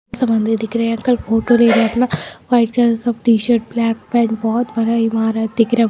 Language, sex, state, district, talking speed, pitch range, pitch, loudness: Hindi, female, Bihar, Muzaffarpur, 225 wpm, 225-240 Hz, 230 Hz, -16 LUFS